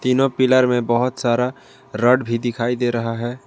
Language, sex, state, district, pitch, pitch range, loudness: Hindi, male, Jharkhand, Garhwa, 125 Hz, 120-130 Hz, -19 LUFS